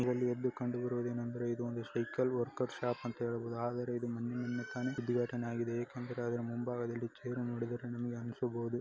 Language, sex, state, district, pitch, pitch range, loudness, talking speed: Kannada, male, Karnataka, Dakshina Kannada, 120 Hz, 120-125 Hz, -38 LUFS, 95 wpm